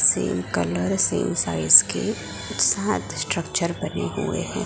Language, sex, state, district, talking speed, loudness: Hindi, female, Gujarat, Gandhinagar, 130 wpm, -21 LUFS